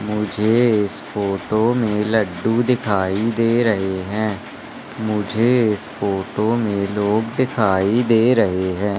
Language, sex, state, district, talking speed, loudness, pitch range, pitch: Hindi, male, Madhya Pradesh, Katni, 120 wpm, -19 LUFS, 100-115 Hz, 105 Hz